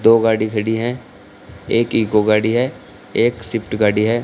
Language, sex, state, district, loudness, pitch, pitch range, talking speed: Hindi, male, Uttar Pradesh, Shamli, -17 LUFS, 110 Hz, 105-115 Hz, 185 wpm